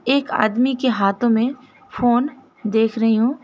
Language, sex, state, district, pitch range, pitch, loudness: Hindi, female, West Bengal, Alipurduar, 225-260 Hz, 240 Hz, -19 LUFS